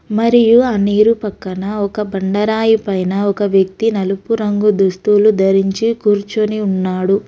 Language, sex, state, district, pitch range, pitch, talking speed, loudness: Telugu, female, Telangana, Hyderabad, 195-215 Hz, 205 Hz, 125 wpm, -14 LUFS